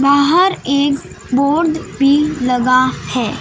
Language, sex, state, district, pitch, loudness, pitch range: Hindi, female, Madhya Pradesh, Dhar, 280 Hz, -15 LUFS, 255-300 Hz